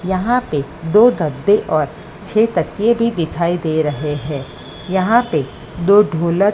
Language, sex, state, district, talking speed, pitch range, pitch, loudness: Hindi, female, Maharashtra, Mumbai Suburban, 145 wpm, 155-210 Hz, 175 Hz, -16 LUFS